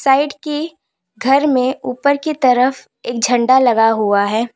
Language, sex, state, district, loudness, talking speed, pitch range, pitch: Hindi, female, Uttar Pradesh, Lalitpur, -15 LUFS, 160 wpm, 240-285 Hz, 255 Hz